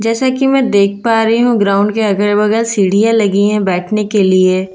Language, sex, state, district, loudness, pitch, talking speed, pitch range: Hindi, female, Bihar, Katihar, -12 LUFS, 210 Hz, 225 wpm, 200-225 Hz